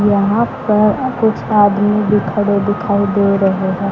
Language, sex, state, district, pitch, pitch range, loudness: Hindi, male, Haryana, Charkhi Dadri, 205 Hz, 200-210 Hz, -14 LUFS